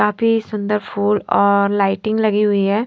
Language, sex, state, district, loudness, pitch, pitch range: Hindi, female, Himachal Pradesh, Shimla, -17 LUFS, 210 Hz, 200-215 Hz